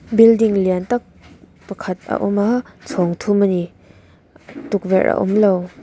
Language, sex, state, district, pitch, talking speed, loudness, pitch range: Mizo, female, Mizoram, Aizawl, 195 Hz, 155 wpm, -17 LUFS, 180-220 Hz